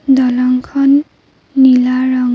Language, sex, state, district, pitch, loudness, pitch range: Assamese, female, Assam, Kamrup Metropolitan, 260 Hz, -12 LUFS, 255-275 Hz